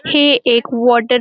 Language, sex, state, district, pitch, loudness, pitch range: Marathi, female, Maharashtra, Dhule, 245 Hz, -13 LUFS, 240-275 Hz